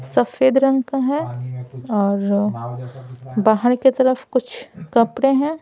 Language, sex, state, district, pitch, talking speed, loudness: Hindi, female, Bihar, Patna, 220 Hz, 115 wpm, -18 LUFS